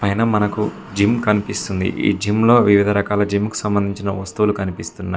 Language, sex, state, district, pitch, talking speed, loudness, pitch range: Telugu, male, Telangana, Mahabubabad, 105 Hz, 165 wpm, -18 LUFS, 100-105 Hz